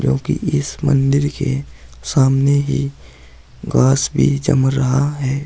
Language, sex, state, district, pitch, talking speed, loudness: Hindi, male, Uttar Pradesh, Saharanpur, 130 Hz, 120 wpm, -17 LUFS